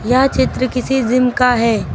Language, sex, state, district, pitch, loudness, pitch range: Hindi, female, Uttar Pradesh, Lucknow, 250 Hz, -15 LUFS, 240-255 Hz